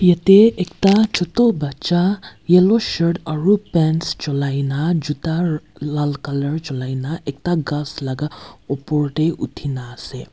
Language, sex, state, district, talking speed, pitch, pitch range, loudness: Nagamese, female, Nagaland, Kohima, 130 wpm, 155 Hz, 140-175 Hz, -19 LUFS